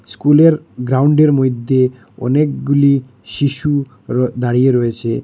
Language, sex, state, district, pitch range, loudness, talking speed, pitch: Bengali, male, Assam, Hailakandi, 125-140 Hz, -15 LUFS, 90 wpm, 130 Hz